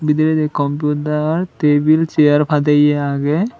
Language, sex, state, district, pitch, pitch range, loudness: Chakma, male, Tripura, Unakoti, 150 Hz, 145-155 Hz, -15 LUFS